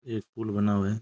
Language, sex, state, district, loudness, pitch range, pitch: Rajasthani, male, Rajasthan, Churu, -29 LUFS, 105-110 Hz, 105 Hz